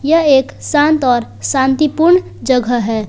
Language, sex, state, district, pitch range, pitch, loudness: Hindi, female, Jharkhand, Palamu, 245-305 Hz, 270 Hz, -13 LUFS